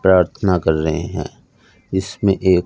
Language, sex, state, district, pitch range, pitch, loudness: Hindi, male, Punjab, Fazilka, 90-100 Hz, 95 Hz, -18 LUFS